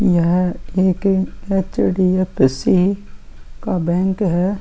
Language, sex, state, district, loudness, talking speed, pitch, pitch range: Hindi, male, Chhattisgarh, Sukma, -18 LUFS, 80 wpm, 185 Hz, 180-195 Hz